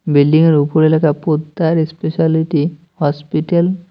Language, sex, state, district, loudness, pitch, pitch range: Bengali, male, West Bengal, Cooch Behar, -15 LUFS, 160 Hz, 150-165 Hz